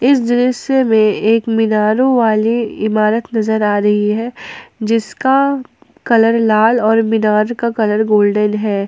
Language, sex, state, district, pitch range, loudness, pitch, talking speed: Hindi, female, Jharkhand, Ranchi, 215-240 Hz, -14 LUFS, 225 Hz, 135 wpm